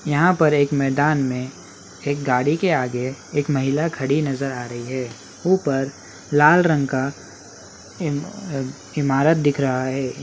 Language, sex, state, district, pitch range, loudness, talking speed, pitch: Hindi, male, Bihar, Muzaffarpur, 130-150 Hz, -21 LUFS, 145 wpm, 140 Hz